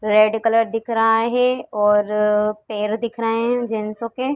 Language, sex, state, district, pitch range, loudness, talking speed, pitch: Hindi, female, Uttar Pradesh, Etah, 210-230 Hz, -19 LUFS, 165 wpm, 225 Hz